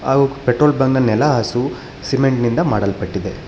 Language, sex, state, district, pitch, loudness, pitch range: Kannada, male, Karnataka, Bangalore, 130 Hz, -17 LUFS, 115-140 Hz